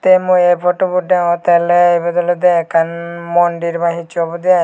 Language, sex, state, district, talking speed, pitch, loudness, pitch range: Chakma, male, Tripura, Dhalai, 180 wpm, 175 Hz, -14 LUFS, 170-180 Hz